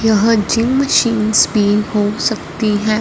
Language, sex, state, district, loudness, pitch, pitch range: Hindi, female, Punjab, Fazilka, -14 LUFS, 215 Hz, 210-230 Hz